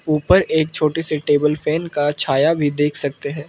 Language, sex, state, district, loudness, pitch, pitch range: Hindi, male, Arunachal Pradesh, Lower Dibang Valley, -18 LUFS, 150 Hz, 145-160 Hz